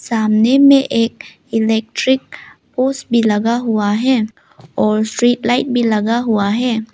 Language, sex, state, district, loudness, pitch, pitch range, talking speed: Hindi, female, Arunachal Pradesh, Lower Dibang Valley, -15 LUFS, 230 Hz, 220-245 Hz, 140 wpm